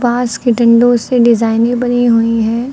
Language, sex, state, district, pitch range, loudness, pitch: Hindi, female, Uttar Pradesh, Lucknow, 230-245 Hz, -11 LUFS, 240 Hz